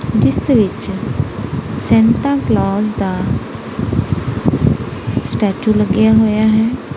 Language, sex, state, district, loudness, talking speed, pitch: Punjabi, female, Punjab, Kapurthala, -15 LUFS, 75 wpm, 210 Hz